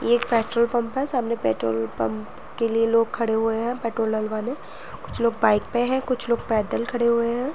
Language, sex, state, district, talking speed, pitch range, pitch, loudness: Hindi, female, Uttar Pradesh, Jyotiba Phule Nagar, 215 wpm, 220-240 Hz, 230 Hz, -23 LUFS